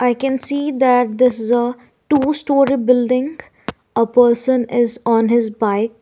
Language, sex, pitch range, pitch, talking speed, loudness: English, female, 235-265 Hz, 245 Hz, 160 wpm, -16 LUFS